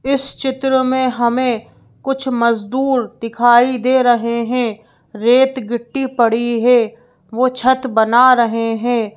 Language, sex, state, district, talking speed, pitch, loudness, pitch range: Hindi, female, Madhya Pradesh, Bhopal, 125 wpm, 245 Hz, -15 LUFS, 235-260 Hz